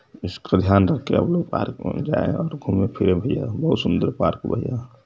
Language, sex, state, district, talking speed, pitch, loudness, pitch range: Hindi, male, Uttar Pradesh, Varanasi, 190 wpm, 125 Hz, -22 LUFS, 95-150 Hz